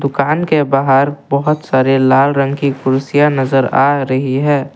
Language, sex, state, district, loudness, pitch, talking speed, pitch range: Hindi, male, Assam, Kamrup Metropolitan, -13 LUFS, 140 Hz, 165 wpm, 135-145 Hz